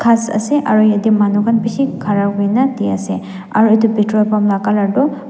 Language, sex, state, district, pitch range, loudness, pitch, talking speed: Nagamese, female, Nagaland, Dimapur, 205-230 Hz, -14 LUFS, 215 Hz, 190 wpm